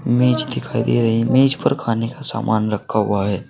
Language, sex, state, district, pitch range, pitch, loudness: Hindi, male, Uttar Pradesh, Saharanpur, 110-125 Hz, 115 Hz, -18 LUFS